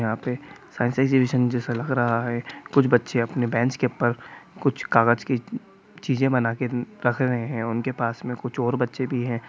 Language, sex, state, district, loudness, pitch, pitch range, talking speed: Hindi, male, Bihar, Gopalganj, -24 LUFS, 125 Hz, 120-130 Hz, 190 wpm